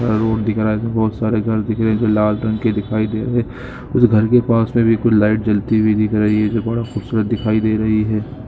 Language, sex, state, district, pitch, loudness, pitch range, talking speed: Hindi, male, Jharkhand, Sahebganj, 110 Hz, -17 LUFS, 110-115 Hz, 270 wpm